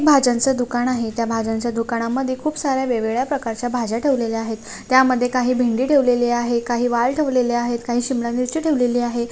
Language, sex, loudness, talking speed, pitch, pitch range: Marathi, female, -20 LUFS, 175 wpm, 245 Hz, 235-260 Hz